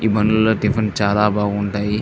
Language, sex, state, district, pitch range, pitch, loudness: Telugu, male, Andhra Pradesh, Visakhapatnam, 105-110 Hz, 105 Hz, -18 LUFS